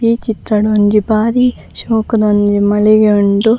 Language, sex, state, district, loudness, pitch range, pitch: Tulu, female, Karnataka, Dakshina Kannada, -12 LUFS, 205-225 Hz, 215 Hz